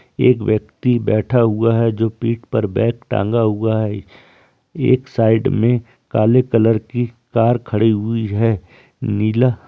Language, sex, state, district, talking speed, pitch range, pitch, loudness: Hindi, male, Bihar, Gaya, 160 wpm, 110-125 Hz, 115 Hz, -17 LUFS